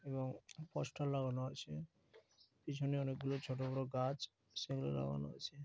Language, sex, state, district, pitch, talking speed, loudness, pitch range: Bengali, male, West Bengal, Dakshin Dinajpur, 130 Hz, 125 wpm, -43 LUFS, 115-140 Hz